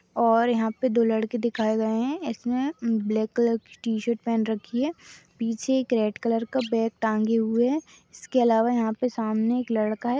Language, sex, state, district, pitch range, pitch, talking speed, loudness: Hindi, female, Chhattisgarh, Bastar, 220-245 Hz, 230 Hz, 195 wpm, -25 LUFS